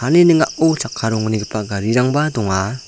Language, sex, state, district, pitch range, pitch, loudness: Garo, male, Meghalaya, South Garo Hills, 110-150 Hz, 115 Hz, -17 LUFS